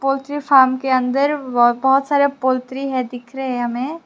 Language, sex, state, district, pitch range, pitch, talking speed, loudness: Hindi, female, Tripura, West Tripura, 255-275 Hz, 265 Hz, 175 wpm, -18 LUFS